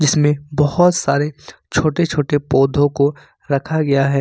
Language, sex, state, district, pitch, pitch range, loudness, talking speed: Hindi, male, Jharkhand, Ranchi, 145 Hz, 140-155 Hz, -17 LUFS, 130 wpm